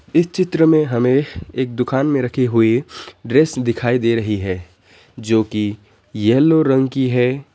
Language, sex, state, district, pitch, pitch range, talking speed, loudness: Hindi, male, West Bengal, Alipurduar, 125 Hz, 110-135 Hz, 160 wpm, -17 LUFS